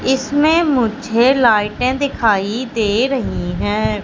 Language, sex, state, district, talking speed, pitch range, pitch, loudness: Hindi, female, Madhya Pradesh, Katni, 105 wpm, 210-265 Hz, 240 Hz, -16 LUFS